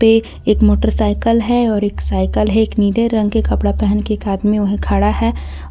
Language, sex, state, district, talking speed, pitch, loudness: Hindi, female, Jharkhand, Garhwa, 200 wpm, 205 Hz, -15 LUFS